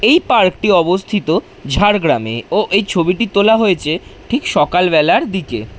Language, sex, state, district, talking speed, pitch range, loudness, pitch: Bengali, male, West Bengal, Jhargram, 145 wpm, 155-205 Hz, -14 LUFS, 180 Hz